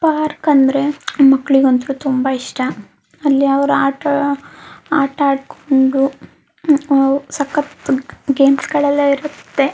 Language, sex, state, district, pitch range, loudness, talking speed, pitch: Kannada, female, Karnataka, Mysore, 275-290 Hz, -15 LUFS, 100 wpm, 280 Hz